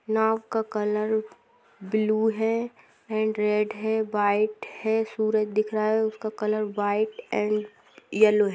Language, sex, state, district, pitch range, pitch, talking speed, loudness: Hindi, female, Jharkhand, Sahebganj, 210-220 Hz, 215 Hz, 140 wpm, -26 LUFS